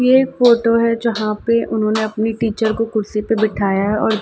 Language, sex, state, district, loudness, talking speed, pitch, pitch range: Hindi, female, Uttar Pradesh, Ghazipur, -17 LUFS, 200 wpm, 220 Hz, 215-230 Hz